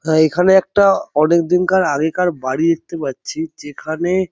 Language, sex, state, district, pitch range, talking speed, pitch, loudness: Bengali, male, West Bengal, Jhargram, 155-185 Hz, 165 wpm, 170 Hz, -16 LUFS